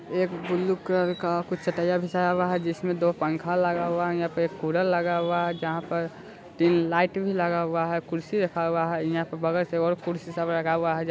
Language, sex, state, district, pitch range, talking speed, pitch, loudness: Hindi, male, Bihar, Sitamarhi, 165-180 Hz, 225 wpm, 170 Hz, -26 LUFS